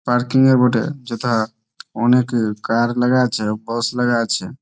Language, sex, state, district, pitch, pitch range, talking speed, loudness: Bengali, male, West Bengal, Malda, 120 Hz, 115-125 Hz, 115 wpm, -18 LUFS